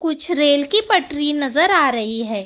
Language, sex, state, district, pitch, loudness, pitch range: Hindi, male, Maharashtra, Gondia, 295 Hz, -16 LUFS, 275-345 Hz